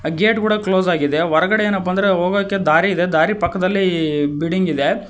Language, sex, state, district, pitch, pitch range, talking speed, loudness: Kannada, male, Karnataka, Koppal, 185 Hz, 160-200 Hz, 165 wpm, -17 LUFS